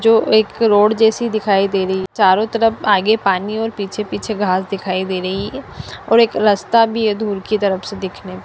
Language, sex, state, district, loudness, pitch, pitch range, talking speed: Hindi, female, Punjab, Fazilka, -16 LUFS, 210 Hz, 195-225 Hz, 205 wpm